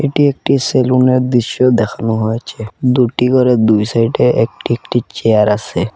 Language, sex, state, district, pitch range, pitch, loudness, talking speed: Bengali, male, Assam, Kamrup Metropolitan, 110-130 Hz, 120 Hz, -14 LUFS, 140 wpm